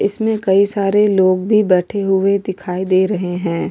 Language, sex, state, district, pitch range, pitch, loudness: Hindi, female, Goa, North and South Goa, 185-205 Hz, 195 Hz, -16 LUFS